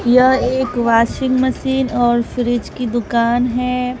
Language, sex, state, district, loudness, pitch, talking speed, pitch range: Hindi, female, Bihar, West Champaran, -16 LUFS, 245 Hz, 135 wpm, 240-255 Hz